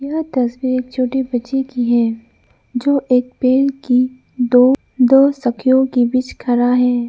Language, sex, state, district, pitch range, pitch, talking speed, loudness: Hindi, female, Arunachal Pradesh, Lower Dibang Valley, 245-265 Hz, 255 Hz, 150 wpm, -16 LUFS